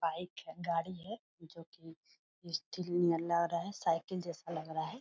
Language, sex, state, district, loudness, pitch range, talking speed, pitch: Hindi, female, Bihar, Purnia, -37 LUFS, 165-180 Hz, 190 wpm, 170 Hz